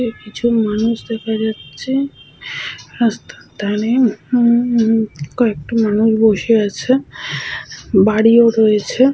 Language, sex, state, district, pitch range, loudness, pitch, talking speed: Bengali, female, West Bengal, Purulia, 215-240 Hz, -16 LUFS, 225 Hz, 90 wpm